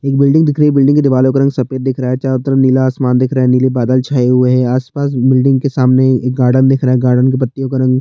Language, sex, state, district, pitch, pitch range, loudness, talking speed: Hindi, male, Chhattisgarh, Jashpur, 130 Hz, 130-135 Hz, -12 LUFS, 300 wpm